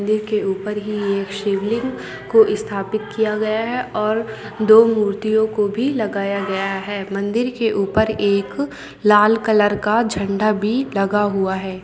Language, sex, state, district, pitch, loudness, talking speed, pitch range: Hindi, female, Chhattisgarh, Balrampur, 210 Hz, -19 LUFS, 150 wpm, 200-220 Hz